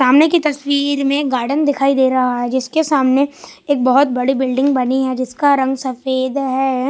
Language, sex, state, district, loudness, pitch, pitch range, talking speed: Hindi, male, Bihar, West Champaran, -16 LUFS, 270 Hz, 260-285 Hz, 180 wpm